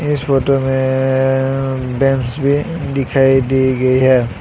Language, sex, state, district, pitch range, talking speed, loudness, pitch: Hindi, male, Assam, Sonitpur, 130-135 Hz, 120 wpm, -15 LUFS, 135 Hz